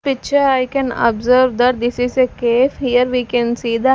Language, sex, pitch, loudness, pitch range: English, female, 250 Hz, -16 LUFS, 240-260 Hz